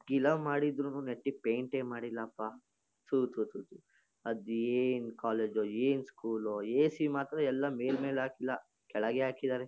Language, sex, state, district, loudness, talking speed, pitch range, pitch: Kannada, male, Karnataka, Shimoga, -35 LUFS, 130 wpm, 115-135 Hz, 125 Hz